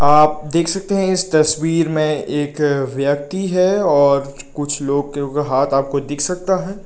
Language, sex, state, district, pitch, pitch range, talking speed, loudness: Hindi, male, Nagaland, Kohima, 150 Hz, 140-180 Hz, 175 wpm, -17 LUFS